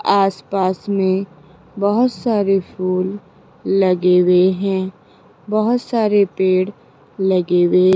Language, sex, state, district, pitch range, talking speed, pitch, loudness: Hindi, female, Rajasthan, Jaipur, 180-200 Hz, 115 wpm, 190 Hz, -17 LUFS